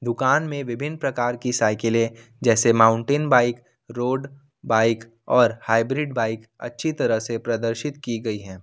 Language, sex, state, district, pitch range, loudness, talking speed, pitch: Hindi, male, Jharkhand, Ranchi, 115-135 Hz, -22 LUFS, 145 wpm, 120 Hz